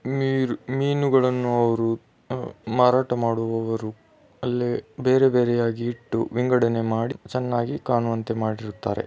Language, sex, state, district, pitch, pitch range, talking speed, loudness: Kannada, male, Karnataka, Belgaum, 120 Hz, 115-125 Hz, 95 wpm, -23 LUFS